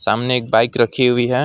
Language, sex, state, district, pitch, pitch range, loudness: Hindi, male, West Bengal, Alipurduar, 125 Hz, 120-125 Hz, -16 LUFS